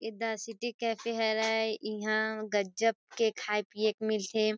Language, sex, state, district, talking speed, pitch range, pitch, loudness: Chhattisgarhi, female, Chhattisgarh, Kabirdham, 170 wpm, 215-225 Hz, 220 Hz, -32 LUFS